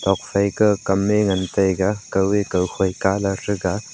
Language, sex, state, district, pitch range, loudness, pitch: Wancho, male, Arunachal Pradesh, Longding, 95-105 Hz, -20 LUFS, 100 Hz